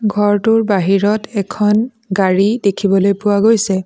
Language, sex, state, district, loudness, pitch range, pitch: Assamese, female, Assam, Sonitpur, -14 LUFS, 195-215 Hz, 205 Hz